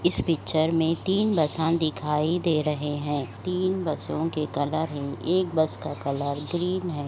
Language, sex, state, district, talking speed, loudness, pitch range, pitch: Hindi, male, Uttar Pradesh, Etah, 195 wpm, -26 LUFS, 145-170 Hz, 160 Hz